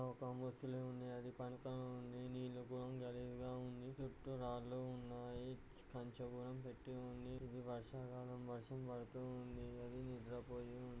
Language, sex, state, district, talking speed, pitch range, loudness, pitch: Telugu, male, Andhra Pradesh, Guntur, 135 wpm, 125-130 Hz, -50 LUFS, 125 Hz